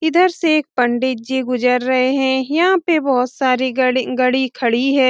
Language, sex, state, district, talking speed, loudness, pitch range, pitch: Hindi, female, Bihar, Saran, 190 wpm, -16 LUFS, 255-285 Hz, 260 Hz